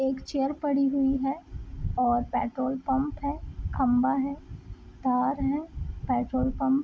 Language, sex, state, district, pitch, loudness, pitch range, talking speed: Hindi, female, Bihar, Gopalganj, 270 Hz, -28 LUFS, 255-275 Hz, 140 wpm